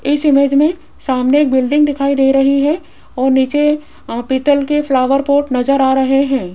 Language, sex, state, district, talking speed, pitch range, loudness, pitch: Hindi, female, Rajasthan, Jaipur, 190 wpm, 265-290 Hz, -14 LUFS, 275 Hz